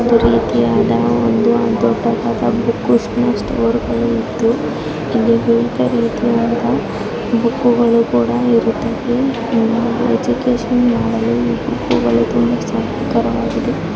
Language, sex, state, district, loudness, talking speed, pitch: Kannada, female, Karnataka, Raichur, -16 LUFS, 85 wpm, 230 Hz